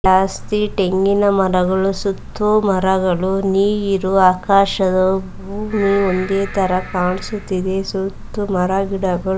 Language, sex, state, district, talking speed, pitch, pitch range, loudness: Kannada, female, Karnataka, Mysore, 95 wpm, 195 Hz, 185-200 Hz, -17 LUFS